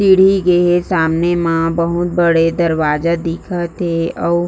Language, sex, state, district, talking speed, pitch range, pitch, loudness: Chhattisgarhi, female, Chhattisgarh, Jashpur, 145 wpm, 165-175 Hz, 170 Hz, -15 LUFS